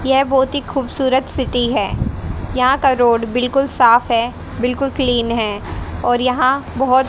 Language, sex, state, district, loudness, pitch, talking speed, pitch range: Hindi, female, Haryana, Jhajjar, -16 LUFS, 255 Hz, 160 wpm, 245-270 Hz